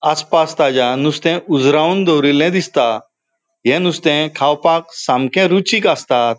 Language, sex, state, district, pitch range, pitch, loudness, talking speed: Konkani, male, Goa, North and South Goa, 145-170 Hz, 155 Hz, -14 LUFS, 120 wpm